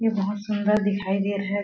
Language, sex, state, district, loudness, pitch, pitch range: Hindi, female, Chhattisgarh, Sarguja, -24 LUFS, 205 Hz, 200-210 Hz